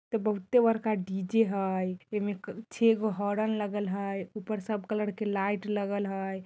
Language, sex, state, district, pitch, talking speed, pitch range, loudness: Bajjika, female, Bihar, Vaishali, 205 Hz, 165 wpm, 195-215 Hz, -30 LUFS